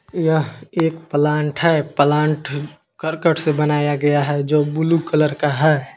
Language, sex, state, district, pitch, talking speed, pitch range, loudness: Hindi, male, Jharkhand, Palamu, 150 Hz, 140 wpm, 145-160 Hz, -18 LUFS